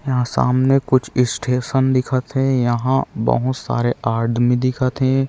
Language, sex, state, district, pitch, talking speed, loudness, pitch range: Chhattisgarhi, male, Chhattisgarh, Raigarh, 130 Hz, 135 wpm, -18 LUFS, 125-130 Hz